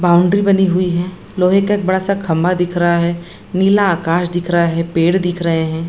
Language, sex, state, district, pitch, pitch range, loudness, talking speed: Hindi, female, Bihar, Jamui, 175 Hz, 170-190 Hz, -15 LUFS, 225 wpm